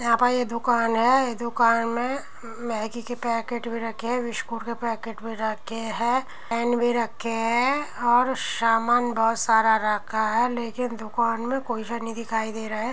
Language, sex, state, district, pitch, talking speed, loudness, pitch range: Hindi, female, Uttar Pradesh, Muzaffarnagar, 230 Hz, 175 wpm, -24 LUFS, 225-240 Hz